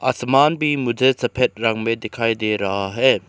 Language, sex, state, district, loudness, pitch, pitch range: Hindi, male, Arunachal Pradesh, Lower Dibang Valley, -19 LUFS, 120 Hz, 110-130 Hz